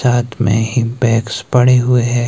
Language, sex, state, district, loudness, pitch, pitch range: Hindi, male, Himachal Pradesh, Shimla, -14 LUFS, 120 Hz, 115-125 Hz